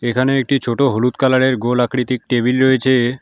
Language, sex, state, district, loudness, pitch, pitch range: Bengali, male, West Bengal, Alipurduar, -16 LUFS, 125 Hz, 120-130 Hz